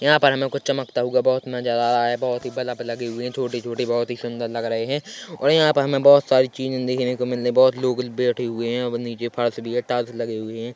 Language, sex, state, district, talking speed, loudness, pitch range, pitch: Hindi, male, Chhattisgarh, Korba, 265 wpm, -21 LUFS, 120-130 Hz, 125 Hz